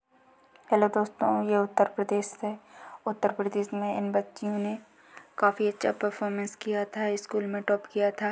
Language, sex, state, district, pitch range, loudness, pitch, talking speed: Hindi, female, Uttar Pradesh, Ghazipur, 205-210 Hz, -29 LUFS, 205 Hz, 160 wpm